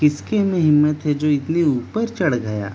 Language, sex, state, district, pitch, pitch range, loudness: Hindi, male, Jharkhand, Jamtara, 150 Hz, 140-170 Hz, -19 LUFS